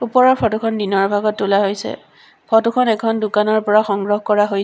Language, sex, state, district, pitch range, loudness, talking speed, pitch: Assamese, female, Assam, Sonitpur, 205-225 Hz, -17 LUFS, 195 wpm, 215 Hz